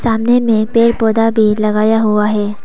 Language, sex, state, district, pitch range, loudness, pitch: Hindi, female, Arunachal Pradesh, Papum Pare, 210-230 Hz, -13 LUFS, 220 Hz